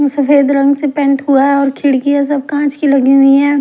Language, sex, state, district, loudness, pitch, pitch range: Hindi, female, Himachal Pradesh, Shimla, -11 LUFS, 280 Hz, 275-285 Hz